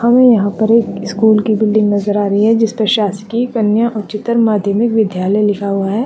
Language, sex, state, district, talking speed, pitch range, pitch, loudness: Hindi, female, Chhattisgarh, Bastar, 200 wpm, 205-225 Hz, 215 Hz, -13 LUFS